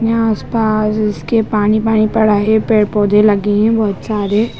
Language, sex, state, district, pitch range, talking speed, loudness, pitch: Hindi, female, Bihar, Muzaffarpur, 210-220 Hz, 145 wpm, -14 LUFS, 215 Hz